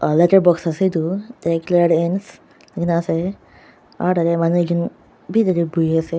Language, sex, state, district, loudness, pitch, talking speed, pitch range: Nagamese, female, Nagaland, Dimapur, -18 LUFS, 170 Hz, 145 wpm, 165-180 Hz